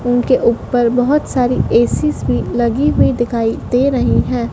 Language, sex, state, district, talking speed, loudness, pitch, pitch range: Hindi, female, Madhya Pradesh, Dhar, 160 wpm, -15 LUFS, 240 Hz, 225-250 Hz